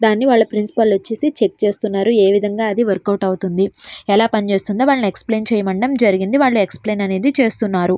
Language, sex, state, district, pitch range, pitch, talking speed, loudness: Telugu, female, Andhra Pradesh, Srikakulam, 195-225 Hz, 210 Hz, 160 wpm, -16 LUFS